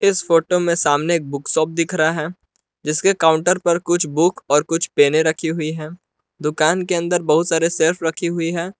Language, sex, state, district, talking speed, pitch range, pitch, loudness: Hindi, male, Jharkhand, Palamu, 200 wpm, 155-175 Hz, 165 Hz, -18 LUFS